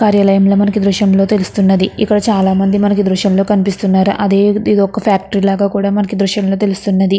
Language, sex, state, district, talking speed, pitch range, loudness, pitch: Telugu, female, Andhra Pradesh, Anantapur, 150 wpm, 195-205 Hz, -13 LUFS, 200 Hz